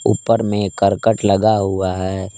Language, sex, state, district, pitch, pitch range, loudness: Hindi, male, Jharkhand, Palamu, 100 Hz, 95-110 Hz, -17 LUFS